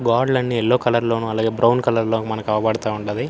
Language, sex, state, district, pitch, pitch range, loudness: Telugu, male, Andhra Pradesh, Anantapur, 115 Hz, 110-120 Hz, -19 LUFS